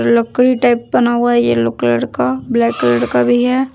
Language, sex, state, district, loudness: Hindi, female, Jharkhand, Deoghar, -14 LUFS